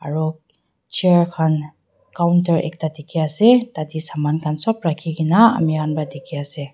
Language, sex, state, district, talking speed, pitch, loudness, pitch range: Nagamese, female, Nagaland, Dimapur, 135 wpm, 160 Hz, -19 LUFS, 150-170 Hz